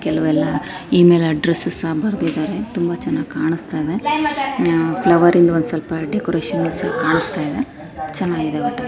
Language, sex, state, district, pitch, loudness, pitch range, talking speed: Kannada, female, Karnataka, Raichur, 165 Hz, -18 LUFS, 155-180 Hz, 120 wpm